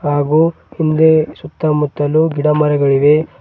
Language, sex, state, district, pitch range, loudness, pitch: Kannada, male, Karnataka, Bidar, 145-155 Hz, -14 LUFS, 150 Hz